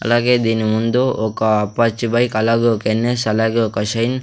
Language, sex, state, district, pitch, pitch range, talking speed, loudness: Telugu, male, Andhra Pradesh, Sri Satya Sai, 115 Hz, 110-120 Hz, 185 wpm, -17 LUFS